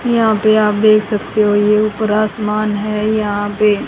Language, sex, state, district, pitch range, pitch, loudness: Hindi, female, Haryana, Rohtak, 210-215 Hz, 215 Hz, -14 LUFS